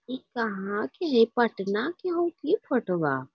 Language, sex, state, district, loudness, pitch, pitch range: Magahi, female, Bihar, Lakhisarai, -27 LUFS, 235 Hz, 200-335 Hz